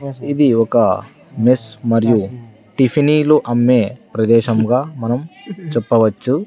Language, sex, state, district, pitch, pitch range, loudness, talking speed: Telugu, male, Andhra Pradesh, Sri Satya Sai, 120 Hz, 115-140 Hz, -15 LUFS, 85 wpm